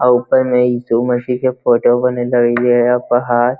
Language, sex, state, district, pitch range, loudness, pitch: Hindi, male, Bihar, Lakhisarai, 120-125 Hz, -14 LUFS, 125 Hz